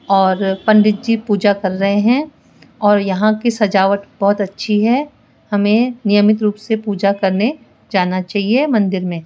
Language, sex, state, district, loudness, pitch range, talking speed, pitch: Hindi, female, Rajasthan, Jaipur, -15 LUFS, 195-220 Hz, 155 wpm, 205 Hz